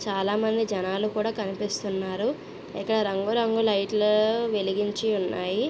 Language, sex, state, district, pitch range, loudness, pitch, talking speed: Telugu, female, Andhra Pradesh, Visakhapatnam, 195-220 Hz, -26 LUFS, 210 Hz, 115 wpm